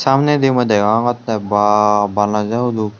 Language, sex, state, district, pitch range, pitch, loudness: Chakma, male, Tripura, Unakoti, 105-120 Hz, 110 Hz, -15 LUFS